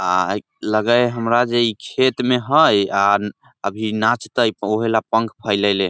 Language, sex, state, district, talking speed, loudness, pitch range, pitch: Maithili, male, Bihar, Samastipur, 165 wpm, -18 LUFS, 105-120 Hz, 110 Hz